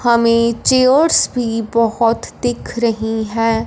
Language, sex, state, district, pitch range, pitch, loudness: Hindi, female, Punjab, Fazilka, 225-240 Hz, 230 Hz, -15 LUFS